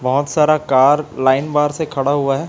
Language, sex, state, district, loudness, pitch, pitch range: Hindi, male, Chhattisgarh, Raipur, -16 LUFS, 145 Hz, 135-150 Hz